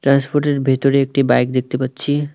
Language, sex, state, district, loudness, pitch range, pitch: Bengali, male, West Bengal, Cooch Behar, -17 LUFS, 130-145 Hz, 140 Hz